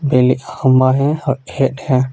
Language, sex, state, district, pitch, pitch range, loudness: Hindi, male, Jharkhand, Deoghar, 130 Hz, 130-135 Hz, -15 LUFS